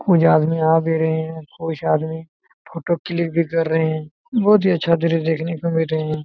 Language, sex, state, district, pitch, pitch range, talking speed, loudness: Hindi, male, Jharkhand, Jamtara, 165 Hz, 160-170 Hz, 220 wpm, -19 LUFS